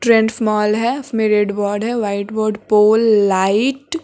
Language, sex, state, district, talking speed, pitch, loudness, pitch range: Hindi, female, Bihar, West Champaran, 180 wpm, 215 Hz, -16 LUFS, 210-230 Hz